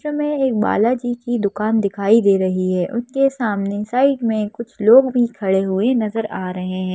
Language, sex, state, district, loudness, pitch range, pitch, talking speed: Hindi, female, Madhya Pradesh, Bhopal, -18 LUFS, 200-245 Hz, 220 Hz, 200 wpm